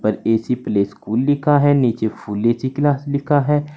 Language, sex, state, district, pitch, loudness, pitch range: Hindi, male, Uttar Pradesh, Saharanpur, 130 Hz, -18 LUFS, 110-145 Hz